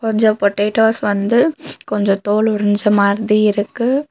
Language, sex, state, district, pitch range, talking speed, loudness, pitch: Tamil, female, Tamil Nadu, Nilgiris, 205-225 Hz, 115 wpm, -15 LUFS, 210 Hz